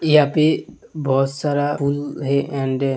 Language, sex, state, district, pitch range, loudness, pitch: Hindi, male, Uttar Pradesh, Hamirpur, 135-150 Hz, -20 LUFS, 145 Hz